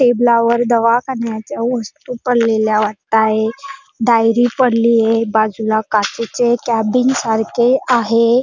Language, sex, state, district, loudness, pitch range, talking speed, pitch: Marathi, female, Maharashtra, Dhule, -15 LUFS, 220-245 Hz, 100 wpm, 230 Hz